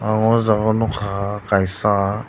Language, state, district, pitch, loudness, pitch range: Kokborok, Tripura, Dhalai, 105 Hz, -19 LUFS, 100-110 Hz